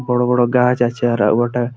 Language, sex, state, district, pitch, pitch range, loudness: Bengali, male, West Bengal, Malda, 120 Hz, 120-125 Hz, -16 LUFS